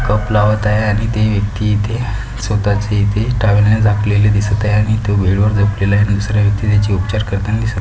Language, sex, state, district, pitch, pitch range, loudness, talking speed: Marathi, female, Maharashtra, Pune, 105 Hz, 100-105 Hz, -15 LUFS, 200 wpm